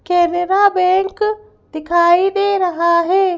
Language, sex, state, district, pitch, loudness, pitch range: Hindi, female, Madhya Pradesh, Bhopal, 365 Hz, -15 LUFS, 345-395 Hz